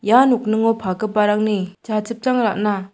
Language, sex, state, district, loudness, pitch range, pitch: Garo, female, Meghalaya, South Garo Hills, -19 LUFS, 210-225 Hz, 215 Hz